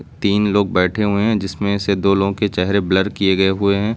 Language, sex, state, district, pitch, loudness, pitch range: Hindi, male, Uttar Pradesh, Lucknow, 100 Hz, -17 LUFS, 95-105 Hz